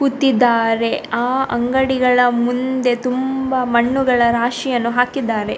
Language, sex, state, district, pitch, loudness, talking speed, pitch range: Kannada, female, Karnataka, Dakshina Kannada, 250 Hz, -17 LUFS, 85 wpm, 240-260 Hz